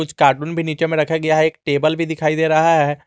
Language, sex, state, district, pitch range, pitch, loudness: Hindi, male, Jharkhand, Garhwa, 150-160 Hz, 155 Hz, -17 LUFS